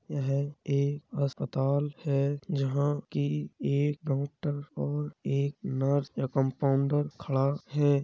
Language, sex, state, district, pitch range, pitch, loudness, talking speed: Hindi, male, Uttar Pradesh, Jalaun, 135-145 Hz, 140 Hz, -30 LUFS, 110 wpm